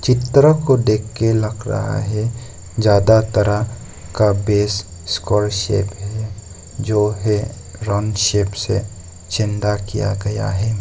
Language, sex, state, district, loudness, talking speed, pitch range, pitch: Hindi, male, Arunachal Pradesh, Lower Dibang Valley, -18 LUFS, 115 wpm, 100-110 Hz, 105 Hz